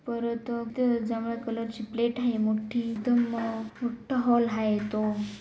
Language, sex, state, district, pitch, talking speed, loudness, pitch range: Marathi, female, Maharashtra, Dhule, 230 Hz, 145 wpm, -29 LUFS, 220-235 Hz